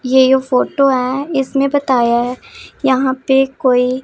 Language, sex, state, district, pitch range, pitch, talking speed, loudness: Hindi, female, Punjab, Pathankot, 255-270 Hz, 265 Hz, 135 wpm, -14 LUFS